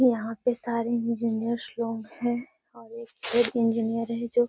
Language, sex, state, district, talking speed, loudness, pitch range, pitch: Magahi, female, Bihar, Gaya, 160 wpm, -28 LUFS, 230-240 Hz, 235 Hz